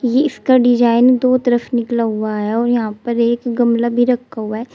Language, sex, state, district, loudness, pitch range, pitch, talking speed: Hindi, female, Uttar Pradesh, Shamli, -15 LUFS, 230-245 Hz, 240 Hz, 215 wpm